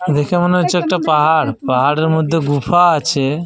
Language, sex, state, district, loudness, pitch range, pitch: Bengali, male, Jharkhand, Jamtara, -14 LUFS, 145-175 Hz, 160 Hz